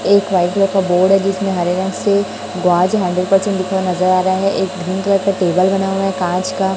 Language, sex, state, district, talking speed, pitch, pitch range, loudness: Hindi, male, Chhattisgarh, Raipur, 240 wpm, 190 Hz, 180-195 Hz, -15 LUFS